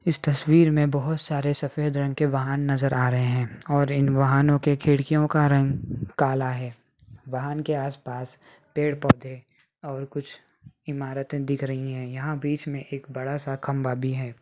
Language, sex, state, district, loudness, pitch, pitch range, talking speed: Hindi, male, Bihar, Kishanganj, -25 LUFS, 140 Hz, 130-145 Hz, 180 wpm